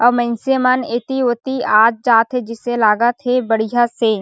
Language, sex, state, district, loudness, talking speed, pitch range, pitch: Chhattisgarhi, female, Chhattisgarh, Sarguja, -16 LUFS, 155 wpm, 230-250 Hz, 240 Hz